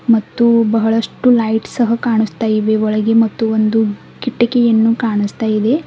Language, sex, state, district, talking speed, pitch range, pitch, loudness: Kannada, female, Karnataka, Bidar, 125 wpm, 220-235 Hz, 225 Hz, -15 LUFS